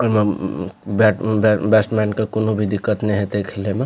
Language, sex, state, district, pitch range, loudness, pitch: Maithili, male, Bihar, Supaul, 100-110 Hz, -19 LUFS, 105 Hz